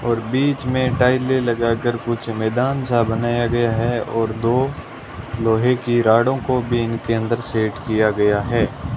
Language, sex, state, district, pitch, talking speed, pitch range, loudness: Hindi, male, Rajasthan, Bikaner, 120 Hz, 160 wpm, 115-125 Hz, -19 LUFS